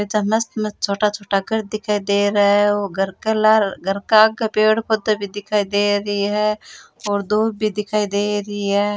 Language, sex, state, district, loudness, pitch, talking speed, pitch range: Rajasthani, female, Rajasthan, Churu, -19 LUFS, 205 Hz, 205 wpm, 205-215 Hz